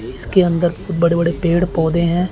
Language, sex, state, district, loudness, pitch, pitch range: Hindi, male, Chandigarh, Chandigarh, -16 LUFS, 170 Hz, 170-175 Hz